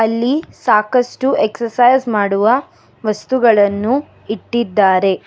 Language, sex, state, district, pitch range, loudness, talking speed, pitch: Kannada, female, Karnataka, Bangalore, 210-250 Hz, -15 LUFS, 70 wpm, 225 Hz